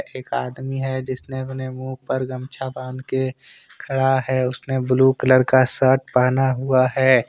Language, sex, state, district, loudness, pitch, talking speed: Hindi, male, Jharkhand, Deoghar, -20 LUFS, 130 Hz, 165 wpm